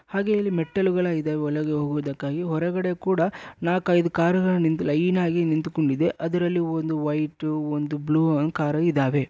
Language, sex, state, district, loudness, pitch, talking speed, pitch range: Kannada, male, Karnataka, Bellary, -24 LUFS, 160 Hz, 130 wpm, 150-175 Hz